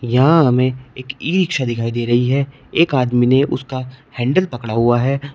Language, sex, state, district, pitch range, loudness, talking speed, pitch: Hindi, male, Uttar Pradesh, Shamli, 120-140 Hz, -17 LUFS, 190 wpm, 130 Hz